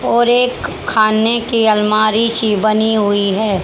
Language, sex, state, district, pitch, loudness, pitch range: Hindi, female, Haryana, Charkhi Dadri, 215 Hz, -14 LUFS, 215-230 Hz